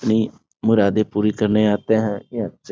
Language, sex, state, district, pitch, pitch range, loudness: Hindi, male, Bihar, Sitamarhi, 105 Hz, 105-110 Hz, -20 LUFS